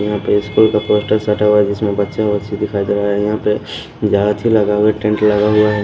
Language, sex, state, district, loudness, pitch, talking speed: Hindi, male, Maharashtra, Washim, -15 LUFS, 105 Hz, 245 wpm